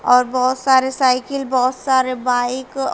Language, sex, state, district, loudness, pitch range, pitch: Hindi, female, Uttar Pradesh, Shamli, -17 LUFS, 255-265 Hz, 255 Hz